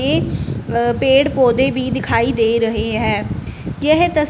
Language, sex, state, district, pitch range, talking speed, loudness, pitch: Hindi, female, Punjab, Fazilka, 230-280 Hz, 155 wpm, -17 LUFS, 255 Hz